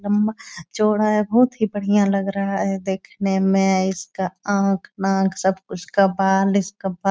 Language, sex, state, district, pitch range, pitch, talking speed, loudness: Hindi, female, Bihar, Jahanabad, 190-205 Hz, 195 Hz, 170 wpm, -20 LUFS